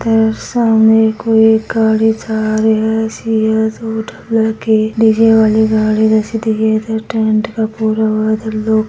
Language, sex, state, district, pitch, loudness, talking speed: Hindi, female, Uttar Pradesh, Etah, 220 Hz, -13 LUFS, 45 wpm